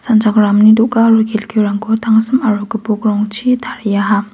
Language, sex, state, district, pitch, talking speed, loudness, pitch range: Garo, female, Meghalaya, West Garo Hills, 220 Hz, 110 wpm, -13 LUFS, 210-225 Hz